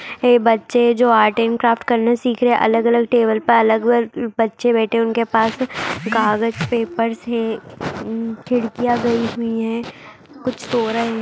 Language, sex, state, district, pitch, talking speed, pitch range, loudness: Hindi, female, Bihar, Bhagalpur, 230 Hz, 155 wpm, 225-240 Hz, -18 LUFS